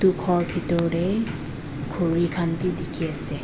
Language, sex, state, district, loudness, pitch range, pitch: Nagamese, female, Nagaland, Dimapur, -24 LUFS, 165-180 Hz, 170 Hz